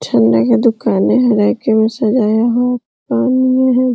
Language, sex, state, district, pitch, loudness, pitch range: Hindi, female, Uttar Pradesh, Hamirpur, 235 Hz, -13 LUFS, 215-250 Hz